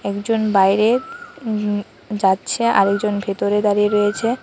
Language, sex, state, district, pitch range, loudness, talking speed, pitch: Bengali, female, Tripura, West Tripura, 200-225 Hz, -18 LUFS, 110 wpm, 210 Hz